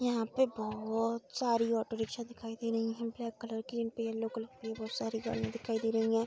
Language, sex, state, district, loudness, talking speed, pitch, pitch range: Hindi, female, Bihar, Saharsa, -36 LUFS, 230 wpm, 225 Hz, 225-235 Hz